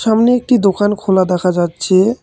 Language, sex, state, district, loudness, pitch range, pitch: Bengali, male, West Bengal, Cooch Behar, -14 LUFS, 185-225 Hz, 195 Hz